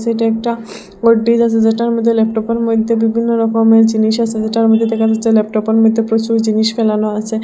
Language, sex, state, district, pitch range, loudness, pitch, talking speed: Bengali, female, Assam, Hailakandi, 220-230 Hz, -13 LUFS, 225 Hz, 195 wpm